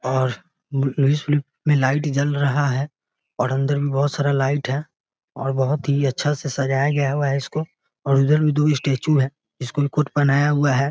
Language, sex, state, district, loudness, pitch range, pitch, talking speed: Hindi, male, Bihar, Muzaffarpur, -21 LUFS, 135-145 Hz, 140 Hz, 205 wpm